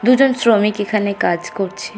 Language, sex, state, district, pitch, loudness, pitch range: Bengali, female, West Bengal, North 24 Parganas, 210 Hz, -16 LUFS, 200-230 Hz